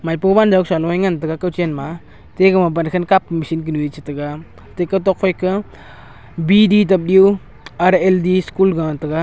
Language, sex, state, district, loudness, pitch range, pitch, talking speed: Wancho, male, Arunachal Pradesh, Longding, -16 LUFS, 160-190 Hz, 175 Hz, 150 wpm